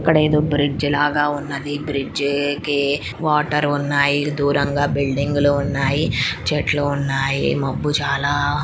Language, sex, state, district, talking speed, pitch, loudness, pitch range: Telugu, female, Andhra Pradesh, Srikakulam, 125 wpm, 145 Hz, -19 LUFS, 140-145 Hz